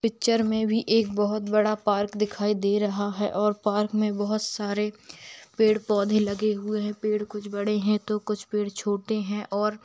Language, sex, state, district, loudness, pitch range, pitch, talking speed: Hindi, female, Bihar, Saharsa, -26 LUFS, 205-215 Hz, 210 Hz, 190 wpm